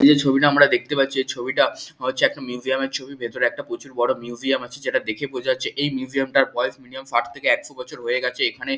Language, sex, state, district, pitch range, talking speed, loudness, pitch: Bengali, male, West Bengal, Kolkata, 130-150 Hz, 225 wpm, -22 LUFS, 135 Hz